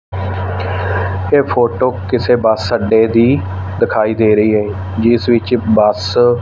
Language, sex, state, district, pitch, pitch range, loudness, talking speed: Punjabi, male, Punjab, Fazilka, 110 Hz, 95-120 Hz, -14 LUFS, 130 wpm